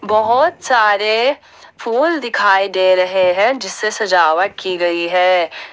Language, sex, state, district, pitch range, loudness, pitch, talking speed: Hindi, female, Jharkhand, Ranchi, 185-235 Hz, -15 LUFS, 200 Hz, 125 wpm